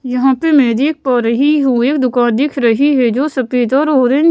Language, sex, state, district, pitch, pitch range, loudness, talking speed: Hindi, female, Bihar, West Champaran, 265 Hz, 250-285 Hz, -13 LUFS, 235 wpm